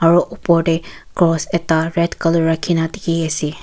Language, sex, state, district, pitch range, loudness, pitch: Nagamese, female, Nagaland, Kohima, 160-170 Hz, -17 LUFS, 165 Hz